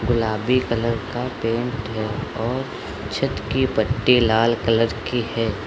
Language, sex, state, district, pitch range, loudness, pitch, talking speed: Hindi, male, Uttar Pradesh, Lucknow, 110-125 Hz, -22 LUFS, 115 Hz, 150 wpm